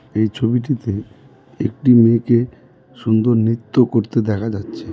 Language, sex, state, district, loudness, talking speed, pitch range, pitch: Bengali, male, West Bengal, Cooch Behar, -17 LUFS, 120 wpm, 110-125 Hz, 115 Hz